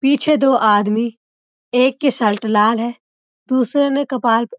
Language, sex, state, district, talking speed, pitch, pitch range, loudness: Hindi, female, Uttarakhand, Uttarkashi, 155 wpm, 245 Hz, 225-270 Hz, -16 LUFS